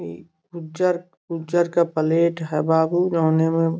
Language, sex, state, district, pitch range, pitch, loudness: Bhojpuri, male, Uttar Pradesh, Gorakhpur, 160-170 Hz, 165 Hz, -21 LUFS